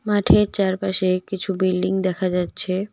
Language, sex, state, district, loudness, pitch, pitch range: Bengali, female, West Bengal, Cooch Behar, -21 LUFS, 190 Hz, 185-195 Hz